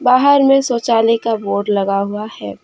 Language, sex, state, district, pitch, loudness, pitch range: Hindi, female, Jharkhand, Deoghar, 225 Hz, -15 LUFS, 200-250 Hz